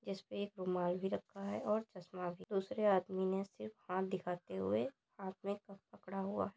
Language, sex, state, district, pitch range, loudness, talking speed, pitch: Hindi, female, Uttar Pradesh, Muzaffarnagar, 180-200 Hz, -40 LUFS, 210 wpm, 190 Hz